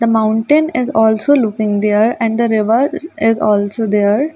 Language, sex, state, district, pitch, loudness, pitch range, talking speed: Hindi, female, Delhi, New Delhi, 225 Hz, -14 LUFS, 215-255 Hz, 180 wpm